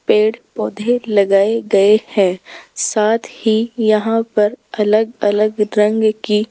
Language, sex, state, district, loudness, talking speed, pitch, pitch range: Hindi, female, Rajasthan, Jaipur, -16 LUFS, 130 wpm, 215 Hz, 210-225 Hz